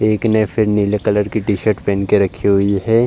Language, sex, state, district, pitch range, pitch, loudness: Hindi, male, Uttar Pradesh, Jalaun, 100-110 Hz, 105 Hz, -16 LUFS